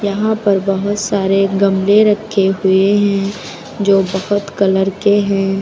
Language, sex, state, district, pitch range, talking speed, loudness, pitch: Hindi, female, Uttar Pradesh, Lucknow, 195-205 Hz, 140 wpm, -14 LUFS, 200 Hz